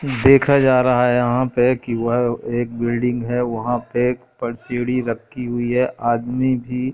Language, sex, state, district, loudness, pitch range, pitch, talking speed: Hindi, male, Madhya Pradesh, Katni, -19 LUFS, 120-125 Hz, 125 Hz, 180 wpm